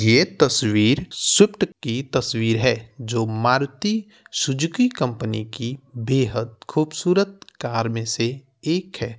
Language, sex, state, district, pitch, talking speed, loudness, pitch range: Bhojpuri, male, Uttar Pradesh, Gorakhpur, 125 Hz, 120 wpm, -21 LUFS, 115-160 Hz